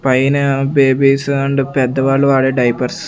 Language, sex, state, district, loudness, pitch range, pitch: Telugu, male, Andhra Pradesh, Sri Satya Sai, -14 LUFS, 130-140 Hz, 135 Hz